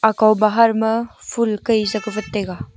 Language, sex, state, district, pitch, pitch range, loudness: Wancho, female, Arunachal Pradesh, Longding, 220 Hz, 215-225 Hz, -18 LUFS